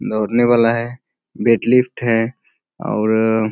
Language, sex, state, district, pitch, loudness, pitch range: Hindi, male, Bihar, Kishanganj, 115 Hz, -17 LUFS, 110-120 Hz